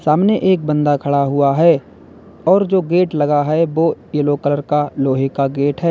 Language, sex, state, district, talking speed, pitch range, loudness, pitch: Hindi, male, Uttar Pradesh, Lalitpur, 195 wpm, 140-165 Hz, -16 LUFS, 150 Hz